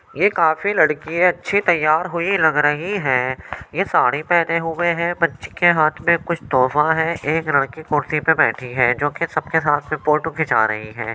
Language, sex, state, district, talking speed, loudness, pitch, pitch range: Hindi, male, Uttar Pradesh, Jyotiba Phule Nagar, 195 wpm, -18 LUFS, 155 Hz, 145-170 Hz